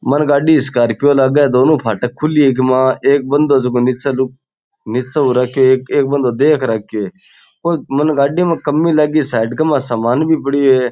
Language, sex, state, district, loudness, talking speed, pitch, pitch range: Rajasthani, male, Rajasthan, Churu, -14 LUFS, 210 wpm, 140 Hz, 125-150 Hz